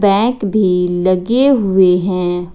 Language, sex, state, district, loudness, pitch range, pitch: Hindi, female, Jharkhand, Ranchi, -13 LUFS, 180-210 Hz, 190 Hz